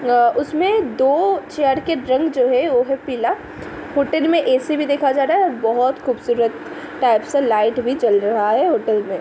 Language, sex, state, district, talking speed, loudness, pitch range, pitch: Hindi, female, Uttar Pradesh, Hamirpur, 195 wpm, -18 LUFS, 240-305 Hz, 265 Hz